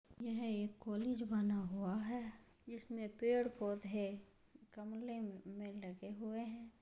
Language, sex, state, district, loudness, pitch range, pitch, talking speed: Hindi, female, Uttar Pradesh, Jyotiba Phule Nagar, -43 LUFS, 205-230 Hz, 220 Hz, 115 wpm